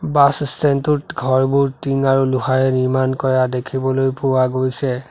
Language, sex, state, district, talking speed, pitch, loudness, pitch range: Assamese, male, Assam, Sonitpur, 140 wpm, 130 Hz, -17 LUFS, 130-140 Hz